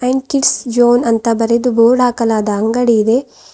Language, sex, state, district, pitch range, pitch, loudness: Kannada, female, Karnataka, Bidar, 230-250 Hz, 235 Hz, -13 LUFS